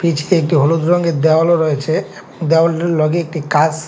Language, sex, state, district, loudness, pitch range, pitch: Bengali, male, Tripura, West Tripura, -15 LUFS, 155-170 Hz, 160 Hz